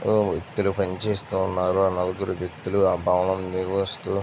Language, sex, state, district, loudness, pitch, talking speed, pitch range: Telugu, male, Andhra Pradesh, Chittoor, -24 LUFS, 95 Hz, 155 wpm, 90-100 Hz